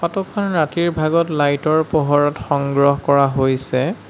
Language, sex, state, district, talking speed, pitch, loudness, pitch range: Assamese, male, Assam, Sonitpur, 145 wpm, 150 Hz, -17 LUFS, 140-170 Hz